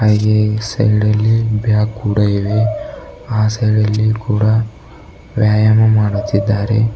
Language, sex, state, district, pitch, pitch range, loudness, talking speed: Kannada, male, Karnataka, Bidar, 110 Hz, 105-110 Hz, -14 LUFS, 105 wpm